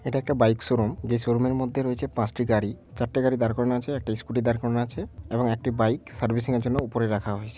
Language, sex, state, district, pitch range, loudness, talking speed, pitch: Bengali, male, West Bengal, Malda, 110-125 Hz, -26 LUFS, 245 wpm, 120 Hz